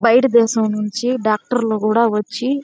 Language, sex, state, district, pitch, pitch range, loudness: Telugu, female, Andhra Pradesh, Chittoor, 230 Hz, 215-245 Hz, -17 LUFS